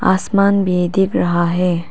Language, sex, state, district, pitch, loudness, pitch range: Hindi, female, Arunachal Pradesh, Papum Pare, 180 Hz, -16 LUFS, 175-195 Hz